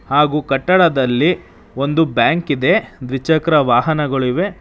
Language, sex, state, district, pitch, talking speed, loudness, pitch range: Kannada, male, Karnataka, Bangalore, 150 Hz, 90 wpm, -16 LUFS, 135-165 Hz